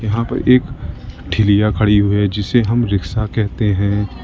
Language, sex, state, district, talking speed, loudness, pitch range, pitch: Hindi, male, Uttar Pradesh, Lalitpur, 170 wpm, -16 LUFS, 100-115 Hz, 105 Hz